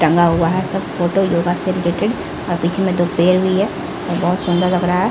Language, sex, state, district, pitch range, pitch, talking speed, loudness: Hindi, female, Bihar, Patna, 175-185 Hz, 180 Hz, 245 wpm, -17 LUFS